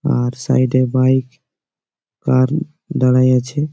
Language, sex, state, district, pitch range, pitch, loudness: Bengali, male, West Bengal, Malda, 130-145 Hz, 130 Hz, -16 LUFS